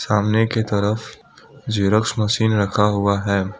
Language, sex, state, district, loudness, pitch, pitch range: Hindi, male, Assam, Kamrup Metropolitan, -19 LUFS, 105 Hz, 100-110 Hz